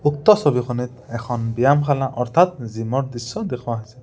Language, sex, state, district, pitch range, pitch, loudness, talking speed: Assamese, male, Assam, Sonitpur, 120-140 Hz, 125 Hz, -20 LUFS, 135 wpm